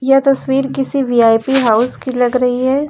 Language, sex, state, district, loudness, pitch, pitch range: Hindi, female, Uttar Pradesh, Lucknow, -14 LUFS, 260 Hz, 245-270 Hz